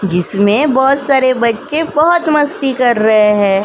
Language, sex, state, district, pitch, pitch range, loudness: Hindi, female, Uttar Pradesh, Jalaun, 255 Hz, 210-295 Hz, -12 LUFS